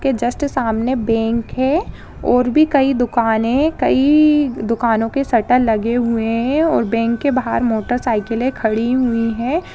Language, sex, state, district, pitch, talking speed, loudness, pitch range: Hindi, female, Rajasthan, Nagaur, 245 Hz, 150 wpm, -17 LUFS, 230-270 Hz